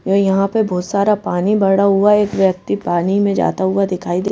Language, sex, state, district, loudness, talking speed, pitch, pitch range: Hindi, female, Madhya Pradesh, Bhopal, -16 LUFS, 250 wpm, 195 Hz, 190-200 Hz